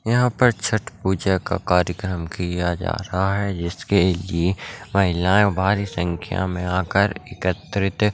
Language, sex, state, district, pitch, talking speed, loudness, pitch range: Hindi, male, Rajasthan, Churu, 95 Hz, 130 wpm, -22 LUFS, 90-100 Hz